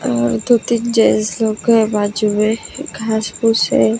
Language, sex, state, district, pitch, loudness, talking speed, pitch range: Hindi, female, Maharashtra, Gondia, 215 Hz, -16 LUFS, 135 wpm, 205-225 Hz